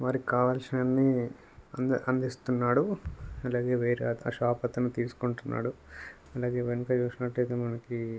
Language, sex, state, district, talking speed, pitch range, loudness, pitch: Telugu, male, Telangana, Nalgonda, 115 wpm, 120-130 Hz, -30 LUFS, 125 Hz